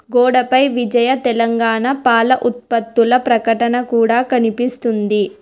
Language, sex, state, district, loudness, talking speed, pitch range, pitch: Telugu, female, Telangana, Hyderabad, -15 LUFS, 90 wpm, 230-250 Hz, 240 Hz